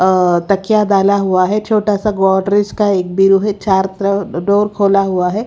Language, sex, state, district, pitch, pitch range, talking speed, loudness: Hindi, female, Haryana, Rohtak, 200 Hz, 190-205 Hz, 185 wpm, -14 LUFS